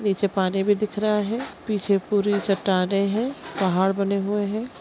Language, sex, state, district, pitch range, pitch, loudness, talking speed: Hindi, female, Chhattisgarh, Sukma, 195-210 Hz, 205 Hz, -23 LUFS, 185 wpm